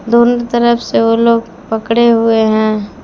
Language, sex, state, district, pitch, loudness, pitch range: Hindi, female, Jharkhand, Palamu, 230 Hz, -12 LUFS, 225-235 Hz